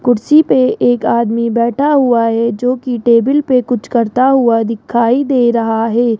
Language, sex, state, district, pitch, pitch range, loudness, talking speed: Hindi, female, Rajasthan, Jaipur, 240 Hz, 230-255 Hz, -12 LUFS, 175 wpm